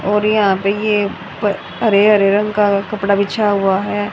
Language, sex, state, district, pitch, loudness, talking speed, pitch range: Hindi, female, Haryana, Jhajjar, 205 Hz, -15 LUFS, 175 wpm, 200-210 Hz